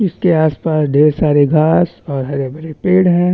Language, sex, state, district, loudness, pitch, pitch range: Hindi, male, Chhattisgarh, Bastar, -14 LUFS, 155 Hz, 145-175 Hz